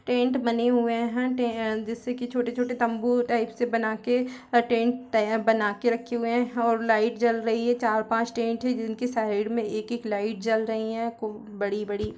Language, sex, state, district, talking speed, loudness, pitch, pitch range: Hindi, female, Chhattisgarh, Raigarh, 185 wpm, -26 LUFS, 230 Hz, 220-240 Hz